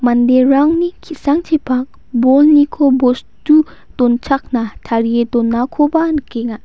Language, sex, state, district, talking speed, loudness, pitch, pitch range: Garo, female, Meghalaya, West Garo Hills, 70 wpm, -14 LUFS, 260 Hz, 240-300 Hz